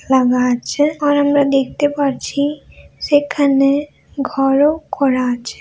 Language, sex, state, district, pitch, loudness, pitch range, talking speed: Bengali, female, West Bengal, Malda, 280 Hz, -16 LUFS, 270-290 Hz, 120 wpm